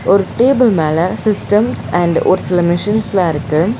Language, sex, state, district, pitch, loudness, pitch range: Tamil, female, Tamil Nadu, Chennai, 185 Hz, -14 LUFS, 165-210 Hz